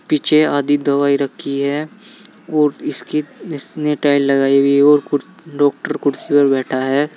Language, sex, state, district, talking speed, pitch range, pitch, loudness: Hindi, male, Uttar Pradesh, Saharanpur, 150 wpm, 140-150 Hz, 145 Hz, -16 LUFS